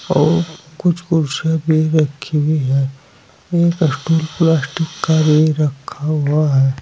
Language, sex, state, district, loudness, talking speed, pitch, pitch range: Hindi, male, Uttar Pradesh, Saharanpur, -16 LUFS, 130 wpm, 155 Hz, 145-160 Hz